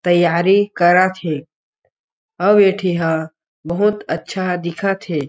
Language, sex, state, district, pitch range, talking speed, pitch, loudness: Chhattisgarhi, male, Chhattisgarh, Jashpur, 165-195 Hz, 100 wpm, 180 Hz, -17 LUFS